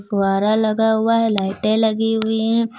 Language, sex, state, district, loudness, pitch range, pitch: Hindi, female, Uttar Pradesh, Lucknow, -18 LUFS, 210-225 Hz, 220 Hz